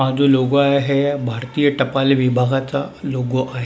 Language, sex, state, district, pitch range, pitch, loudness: Marathi, male, Maharashtra, Mumbai Suburban, 130-140 Hz, 135 Hz, -18 LUFS